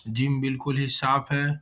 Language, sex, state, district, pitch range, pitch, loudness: Hindi, male, Bihar, Gaya, 135-140 Hz, 135 Hz, -25 LUFS